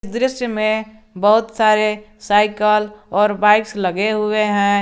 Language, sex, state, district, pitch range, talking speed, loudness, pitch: Hindi, male, Jharkhand, Garhwa, 210-215 Hz, 135 wpm, -17 LUFS, 210 Hz